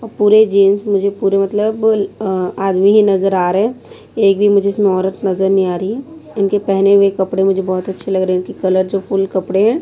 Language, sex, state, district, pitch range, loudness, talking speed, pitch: Hindi, female, Chhattisgarh, Raipur, 190-205 Hz, -14 LUFS, 230 wpm, 195 Hz